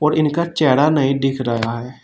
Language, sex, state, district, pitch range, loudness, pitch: Hindi, male, Uttar Pradesh, Shamli, 130-150 Hz, -17 LUFS, 135 Hz